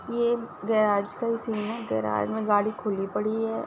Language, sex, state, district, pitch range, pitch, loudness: Hindi, female, Uttar Pradesh, Ghazipur, 205-225 Hz, 215 Hz, -27 LUFS